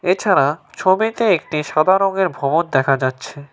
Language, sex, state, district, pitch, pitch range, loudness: Bengali, male, West Bengal, Cooch Behar, 165 Hz, 140-190 Hz, -17 LUFS